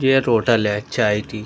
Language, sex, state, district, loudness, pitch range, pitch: Hindi, male, Uttar Pradesh, Deoria, -18 LUFS, 105-125 Hz, 115 Hz